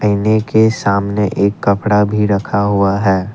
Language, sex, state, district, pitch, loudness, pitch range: Hindi, male, Assam, Kamrup Metropolitan, 100 Hz, -14 LUFS, 100-105 Hz